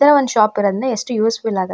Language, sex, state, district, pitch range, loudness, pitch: Kannada, female, Karnataka, Shimoga, 210-255 Hz, -17 LUFS, 225 Hz